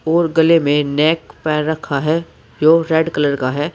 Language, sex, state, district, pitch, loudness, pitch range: Hindi, male, Uttar Pradesh, Saharanpur, 160 Hz, -16 LUFS, 145-165 Hz